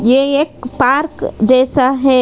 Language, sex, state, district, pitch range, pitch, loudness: Hindi, female, Karnataka, Bangalore, 255-275 Hz, 260 Hz, -13 LUFS